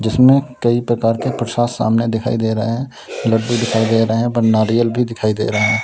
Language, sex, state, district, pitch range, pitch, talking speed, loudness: Hindi, male, Uttar Pradesh, Lalitpur, 110-120 Hz, 115 Hz, 225 wpm, -16 LUFS